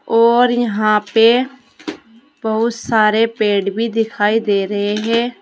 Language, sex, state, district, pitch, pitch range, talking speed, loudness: Hindi, female, Uttar Pradesh, Saharanpur, 225 Hz, 215-240 Hz, 120 wpm, -15 LUFS